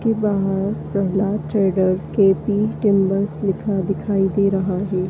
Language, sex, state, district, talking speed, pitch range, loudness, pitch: Hindi, female, Chhattisgarh, Bastar, 130 wpm, 190-205 Hz, -19 LUFS, 195 Hz